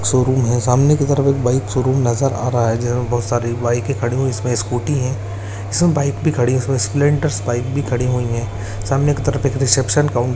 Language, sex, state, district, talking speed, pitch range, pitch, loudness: Hindi, male, Uttarakhand, Uttarkashi, 220 wpm, 120-135 Hz, 125 Hz, -17 LUFS